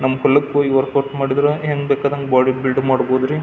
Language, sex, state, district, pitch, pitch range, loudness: Kannada, male, Karnataka, Belgaum, 140 Hz, 130-145 Hz, -17 LUFS